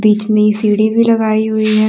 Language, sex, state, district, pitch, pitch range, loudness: Hindi, female, Jharkhand, Deoghar, 215 Hz, 215-220 Hz, -13 LUFS